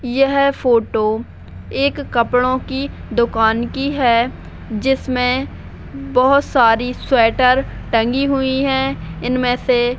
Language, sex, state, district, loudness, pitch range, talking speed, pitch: Hindi, female, Chhattisgarh, Rajnandgaon, -17 LUFS, 235-270 Hz, 110 wpm, 250 Hz